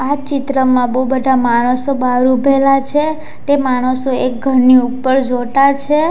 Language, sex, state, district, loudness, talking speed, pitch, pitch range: Gujarati, female, Gujarat, Valsad, -13 LUFS, 145 wpm, 260 Hz, 255-275 Hz